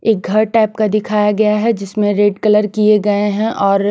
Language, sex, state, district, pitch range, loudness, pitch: Hindi, female, Chandigarh, Chandigarh, 205-215 Hz, -14 LUFS, 210 Hz